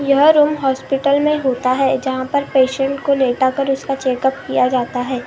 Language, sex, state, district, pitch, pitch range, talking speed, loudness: Hindi, female, Maharashtra, Gondia, 270 Hz, 260-280 Hz, 205 wpm, -16 LUFS